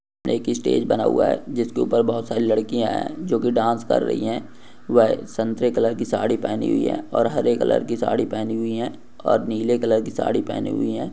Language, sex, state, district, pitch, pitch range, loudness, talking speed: Hindi, male, West Bengal, Jhargram, 115 Hz, 110-115 Hz, -22 LUFS, 220 wpm